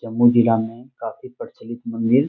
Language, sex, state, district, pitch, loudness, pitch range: Hindi, male, Bihar, Jamui, 115 Hz, -19 LUFS, 115-120 Hz